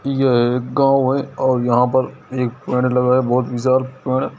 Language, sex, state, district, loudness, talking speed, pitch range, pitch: Hindi, male, Bihar, East Champaran, -17 LUFS, 205 wpm, 125-130 Hz, 130 Hz